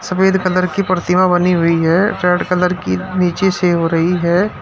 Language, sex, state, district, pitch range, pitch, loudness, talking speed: Hindi, male, Uttar Pradesh, Shamli, 175-185 Hz, 180 Hz, -15 LUFS, 195 wpm